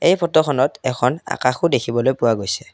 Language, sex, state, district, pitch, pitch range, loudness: Assamese, male, Assam, Kamrup Metropolitan, 130 Hz, 120-155 Hz, -19 LUFS